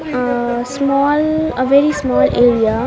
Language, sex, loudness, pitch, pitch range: English, female, -15 LUFS, 260 Hz, 245-290 Hz